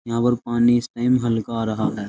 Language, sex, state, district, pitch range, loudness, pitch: Hindi, male, Uttar Pradesh, Jyotiba Phule Nagar, 115-120 Hz, -21 LUFS, 120 Hz